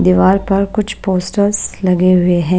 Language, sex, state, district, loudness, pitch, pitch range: Hindi, female, Punjab, Pathankot, -14 LUFS, 185 Hz, 180-200 Hz